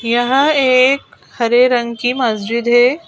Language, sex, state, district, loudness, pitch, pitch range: Hindi, female, Madhya Pradesh, Bhopal, -14 LUFS, 245 Hz, 235-260 Hz